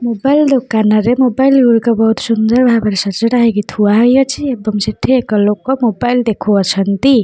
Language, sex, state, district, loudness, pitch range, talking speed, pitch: Odia, female, Odisha, Khordha, -12 LUFS, 210-255 Hz, 150 wpm, 230 Hz